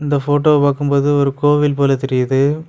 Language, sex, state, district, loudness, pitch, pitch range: Tamil, male, Tamil Nadu, Kanyakumari, -15 LUFS, 145 Hz, 140-145 Hz